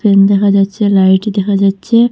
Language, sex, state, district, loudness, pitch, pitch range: Bengali, female, Assam, Hailakandi, -11 LUFS, 200 Hz, 195-205 Hz